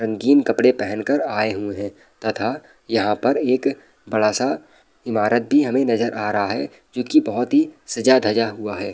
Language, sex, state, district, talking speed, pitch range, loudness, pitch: Hindi, male, Bihar, Madhepura, 180 wpm, 105-130 Hz, -20 LUFS, 115 Hz